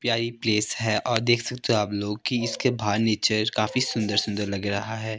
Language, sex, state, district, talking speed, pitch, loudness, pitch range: Hindi, male, Himachal Pradesh, Shimla, 210 wpm, 110 Hz, -25 LUFS, 105-120 Hz